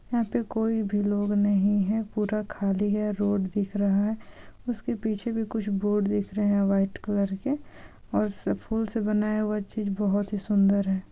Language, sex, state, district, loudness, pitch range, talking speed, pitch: Hindi, female, Bihar, Saran, -27 LUFS, 200-220 Hz, 190 wpm, 205 Hz